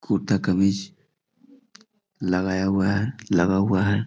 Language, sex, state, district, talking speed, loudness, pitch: Hindi, male, Bihar, Jahanabad, 105 wpm, -23 LUFS, 100 Hz